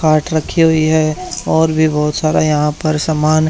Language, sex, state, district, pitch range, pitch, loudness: Hindi, male, Haryana, Charkhi Dadri, 155-160 Hz, 155 Hz, -14 LUFS